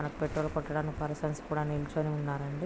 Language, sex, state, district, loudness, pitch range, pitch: Telugu, female, Andhra Pradesh, Krishna, -34 LUFS, 150-155 Hz, 150 Hz